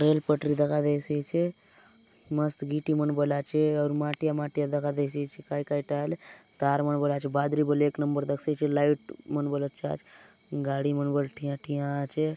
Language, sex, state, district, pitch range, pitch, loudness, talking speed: Halbi, male, Chhattisgarh, Bastar, 145-150 Hz, 145 Hz, -29 LUFS, 205 wpm